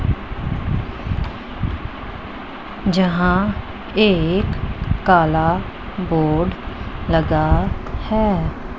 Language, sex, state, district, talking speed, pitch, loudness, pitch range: Hindi, female, Punjab, Pathankot, 40 wpm, 185 Hz, -20 LUFS, 165-195 Hz